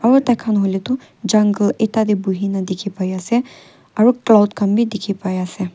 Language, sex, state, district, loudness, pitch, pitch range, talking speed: Nagamese, female, Nagaland, Kohima, -17 LUFS, 205 Hz, 190-225 Hz, 200 wpm